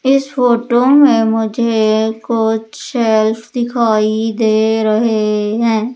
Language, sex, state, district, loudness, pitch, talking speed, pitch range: Hindi, female, Madhya Pradesh, Umaria, -14 LUFS, 225 Hz, 100 wpm, 220-240 Hz